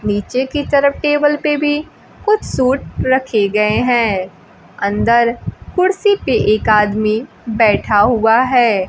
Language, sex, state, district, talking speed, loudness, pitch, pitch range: Hindi, female, Bihar, Kaimur, 130 wpm, -15 LUFS, 235 Hz, 210-290 Hz